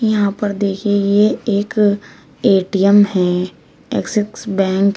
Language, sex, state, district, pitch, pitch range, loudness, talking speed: Hindi, female, Uttar Pradesh, Shamli, 200 Hz, 195-210 Hz, -16 LUFS, 120 wpm